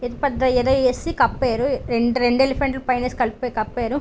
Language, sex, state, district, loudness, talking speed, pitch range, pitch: Telugu, female, Andhra Pradesh, Visakhapatnam, -20 LUFS, 165 wpm, 245-265 Hz, 250 Hz